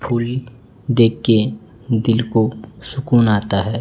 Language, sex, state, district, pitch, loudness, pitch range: Hindi, male, Chhattisgarh, Raipur, 115 Hz, -17 LUFS, 110-120 Hz